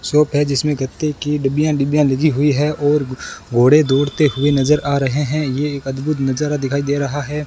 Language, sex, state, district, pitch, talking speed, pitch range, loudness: Hindi, male, Rajasthan, Bikaner, 145 Hz, 210 wpm, 140-150 Hz, -17 LUFS